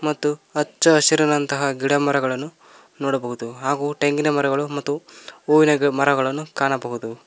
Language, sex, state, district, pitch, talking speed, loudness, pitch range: Kannada, male, Karnataka, Koppal, 145 Hz, 100 wpm, -20 LUFS, 135-150 Hz